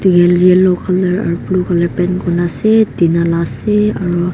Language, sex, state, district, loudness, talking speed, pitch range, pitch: Nagamese, female, Nagaland, Kohima, -13 LUFS, 165 wpm, 170-185 Hz, 180 Hz